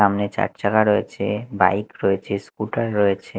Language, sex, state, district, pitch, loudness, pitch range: Bengali, male, Chhattisgarh, Raipur, 100 Hz, -21 LUFS, 100-105 Hz